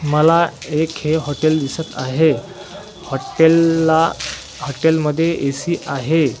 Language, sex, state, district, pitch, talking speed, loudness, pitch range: Marathi, male, Maharashtra, Washim, 160 Hz, 110 wpm, -17 LUFS, 145-165 Hz